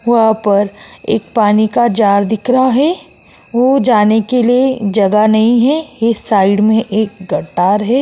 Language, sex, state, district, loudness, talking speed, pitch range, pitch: Hindi, female, Uttar Pradesh, Jyotiba Phule Nagar, -12 LUFS, 165 wpm, 210-245 Hz, 220 Hz